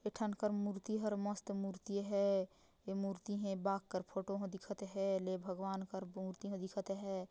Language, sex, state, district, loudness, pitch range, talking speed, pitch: Chhattisgarhi, female, Chhattisgarh, Jashpur, -41 LUFS, 190-200 Hz, 180 wpm, 195 Hz